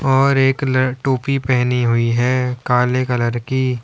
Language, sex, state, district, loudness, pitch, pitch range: Hindi, male, Uttar Pradesh, Lalitpur, -17 LUFS, 130 Hz, 125-135 Hz